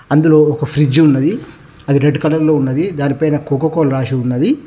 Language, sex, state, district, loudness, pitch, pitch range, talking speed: Telugu, male, Telangana, Hyderabad, -14 LUFS, 150 Hz, 140-155 Hz, 180 wpm